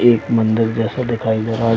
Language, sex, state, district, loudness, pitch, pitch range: Hindi, male, Chhattisgarh, Bilaspur, -17 LUFS, 115 Hz, 110-115 Hz